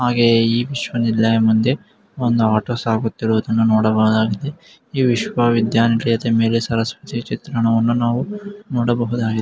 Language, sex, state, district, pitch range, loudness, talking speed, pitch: Kannada, male, Karnataka, Mysore, 115-120 Hz, -18 LUFS, 95 wpm, 115 Hz